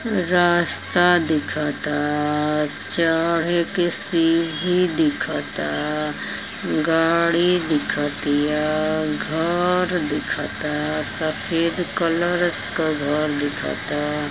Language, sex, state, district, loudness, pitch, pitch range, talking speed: Bhojpuri, female, Uttar Pradesh, Ghazipur, -21 LUFS, 160 Hz, 150-175 Hz, 65 wpm